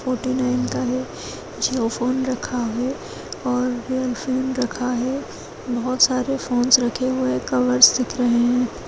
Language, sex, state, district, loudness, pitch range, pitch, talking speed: Hindi, female, Chhattisgarh, Kabirdham, -21 LUFS, 245-255 Hz, 250 Hz, 155 wpm